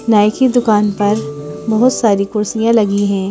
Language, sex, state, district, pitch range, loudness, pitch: Hindi, female, Madhya Pradesh, Bhopal, 200-225 Hz, -14 LUFS, 210 Hz